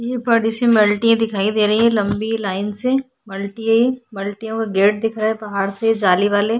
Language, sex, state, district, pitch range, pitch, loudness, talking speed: Hindi, female, Bihar, Vaishali, 205-230 Hz, 220 Hz, -17 LUFS, 220 wpm